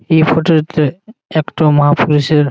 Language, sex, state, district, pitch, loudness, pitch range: Bengali, male, West Bengal, Malda, 155 Hz, -13 LUFS, 150-160 Hz